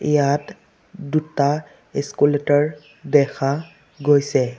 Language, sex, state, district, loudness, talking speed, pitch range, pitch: Assamese, male, Assam, Sonitpur, -20 LUFS, 65 wpm, 140-155 Hz, 145 Hz